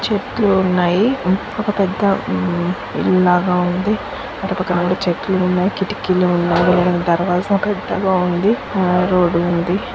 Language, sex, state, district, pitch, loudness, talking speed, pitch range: Telugu, female, Andhra Pradesh, Srikakulam, 185 Hz, -17 LUFS, 120 wpm, 180-200 Hz